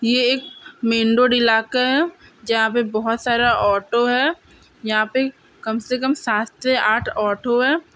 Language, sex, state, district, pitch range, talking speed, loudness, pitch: Hindi, female, Andhra Pradesh, Krishna, 220-255 Hz, 180 wpm, -19 LUFS, 240 Hz